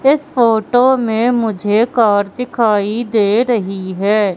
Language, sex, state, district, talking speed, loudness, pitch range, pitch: Hindi, female, Madhya Pradesh, Katni, 125 wpm, -14 LUFS, 205-245 Hz, 225 Hz